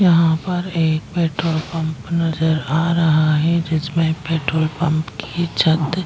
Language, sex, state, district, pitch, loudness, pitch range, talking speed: Hindi, female, Chhattisgarh, Jashpur, 160 Hz, -19 LUFS, 155-165 Hz, 150 wpm